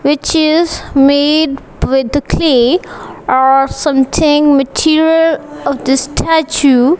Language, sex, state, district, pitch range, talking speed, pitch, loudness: English, female, Punjab, Kapurthala, 270-315 Hz, 105 wpm, 290 Hz, -11 LUFS